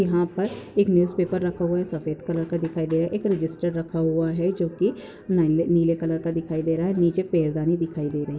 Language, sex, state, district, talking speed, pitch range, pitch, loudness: Hindi, female, Goa, North and South Goa, 235 wpm, 165-180 Hz, 170 Hz, -24 LUFS